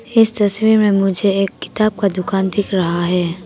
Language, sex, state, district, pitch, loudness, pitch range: Hindi, female, Arunachal Pradesh, Papum Pare, 195 Hz, -16 LUFS, 185-210 Hz